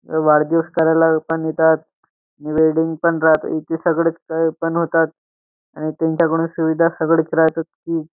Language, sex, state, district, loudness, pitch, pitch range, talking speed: Marathi, male, Maharashtra, Nagpur, -18 LUFS, 160 Hz, 160-165 Hz, 155 wpm